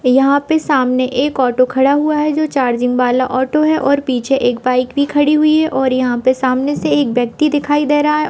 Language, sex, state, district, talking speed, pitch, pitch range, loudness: Hindi, female, Bihar, Jamui, 230 wpm, 270 Hz, 255-295 Hz, -14 LUFS